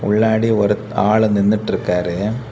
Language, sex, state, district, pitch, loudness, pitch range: Tamil, male, Tamil Nadu, Kanyakumari, 105 Hz, -17 LUFS, 100-110 Hz